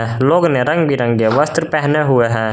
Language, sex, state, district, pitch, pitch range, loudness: Hindi, male, Jharkhand, Garhwa, 135 Hz, 115-155 Hz, -14 LUFS